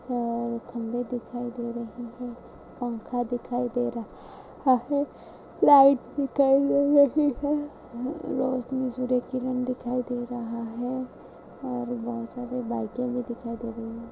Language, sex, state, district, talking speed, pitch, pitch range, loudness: Hindi, female, Goa, North and South Goa, 145 wpm, 245 Hz, 235-260 Hz, -27 LUFS